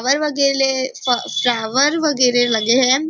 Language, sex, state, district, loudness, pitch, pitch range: Hindi, female, Maharashtra, Nagpur, -16 LUFS, 260 Hz, 245-280 Hz